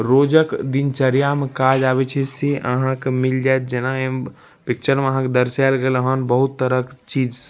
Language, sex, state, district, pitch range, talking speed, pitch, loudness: Maithili, male, Bihar, Darbhanga, 130-135 Hz, 175 wpm, 130 Hz, -19 LUFS